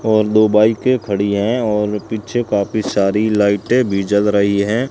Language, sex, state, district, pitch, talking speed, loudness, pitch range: Hindi, male, Rajasthan, Bikaner, 105 Hz, 170 wpm, -16 LUFS, 100-110 Hz